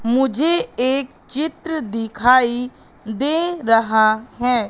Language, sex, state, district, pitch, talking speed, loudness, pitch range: Hindi, female, Madhya Pradesh, Katni, 250 Hz, 90 wpm, -18 LUFS, 225-285 Hz